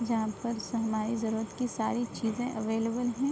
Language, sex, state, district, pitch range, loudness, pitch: Hindi, female, Uttar Pradesh, Budaun, 220-240 Hz, -32 LUFS, 225 Hz